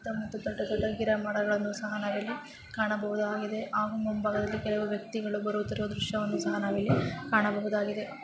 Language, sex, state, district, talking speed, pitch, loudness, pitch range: Kannada, female, Karnataka, Chamarajanagar, 115 wpm, 210 Hz, -31 LUFS, 210-215 Hz